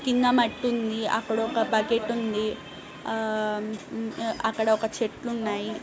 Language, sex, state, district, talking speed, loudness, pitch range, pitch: Telugu, female, Andhra Pradesh, Krishna, 135 wpm, -27 LUFS, 215-230 Hz, 225 Hz